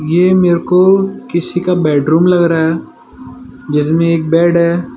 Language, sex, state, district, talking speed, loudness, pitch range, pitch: Hindi, male, Gujarat, Valsad, 155 wpm, -12 LUFS, 155-180 Hz, 170 Hz